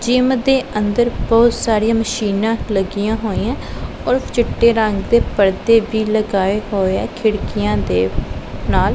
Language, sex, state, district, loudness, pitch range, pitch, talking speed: Punjabi, female, Punjab, Pathankot, -17 LUFS, 195-235 Hz, 215 Hz, 135 wpm